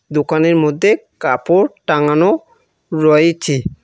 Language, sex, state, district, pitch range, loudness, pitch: Bengali, male, West Bengal, Cooch Behar, 150-170 Hz, -14 LUFS, 160 Hz